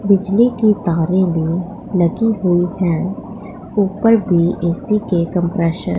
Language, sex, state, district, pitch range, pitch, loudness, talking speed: Hindi, female, Punjab, Pathankot, 175-210 Hz, 185 Hz, -16 LUFS, 130 wpm